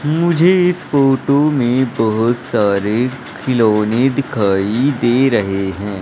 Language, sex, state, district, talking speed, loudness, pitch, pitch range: Hindi, male, Madhya Pradesh, Umaria, 110 wpm, -15 LUFS, 125 Hz, 105-140 Hz